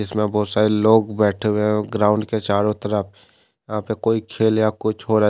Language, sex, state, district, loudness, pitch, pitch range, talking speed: Hindi, male, Jharkhand, Deoghar, -20 LUFS, 105 Hz, 105-110 Hz, 215 wpm